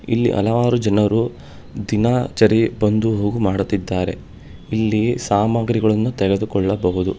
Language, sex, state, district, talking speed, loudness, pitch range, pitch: Kannada, male, Karnataka, Bangalore, 90 wpm, -18 LUFS, 100-115 Hz, 105 Hz